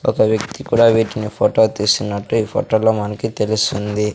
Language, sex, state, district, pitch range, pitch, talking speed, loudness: Telugu, male, Andhra Pradesh, Sri Satya Sai, 105-110 Hz, 110 Hz, 160 wpm, -17 LUFS